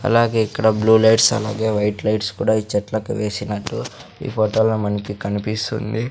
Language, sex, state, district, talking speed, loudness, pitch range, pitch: Telugu, male, Andhra Pradesh, Sri Satya Sai, 165 wpm, -19 LUFS, 105-110 Hz, 110 Hz